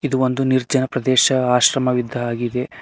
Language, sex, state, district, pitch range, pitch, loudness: Kannada, male, Karnataka, Koppal, 125-130 Hz, 130 Hz, -18 LUFS